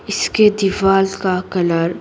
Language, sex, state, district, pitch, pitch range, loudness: Hindi, female, Bihar, Patna, 195 Hz, 180-195 Hz, -16 LUFS